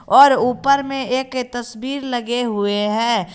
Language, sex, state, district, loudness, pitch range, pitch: Hindi, female, Jharkhand, Garhwa, -18 LUFS, 230-265 Hz, 245 Hz